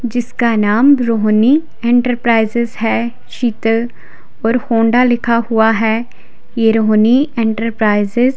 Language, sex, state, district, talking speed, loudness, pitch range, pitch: Hindi, female, Himachal Pradesh, Shimla, 105 wpm, -14 LUFS, 225-240 Hz, 230 Hz